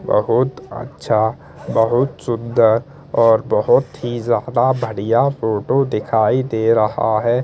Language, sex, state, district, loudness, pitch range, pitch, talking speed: Hindi, male, Chandigarh, Chandigarh, -17 LUFS, 110-125 Hz, 115 Hz, 120 wpm